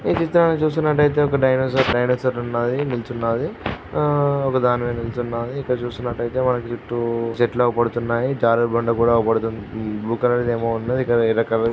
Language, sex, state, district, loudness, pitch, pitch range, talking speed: Telugu, male, Andhra Pradesh, Guntur, -20 LUFS, 120 Hz, 115-130 Hz, 100 wpm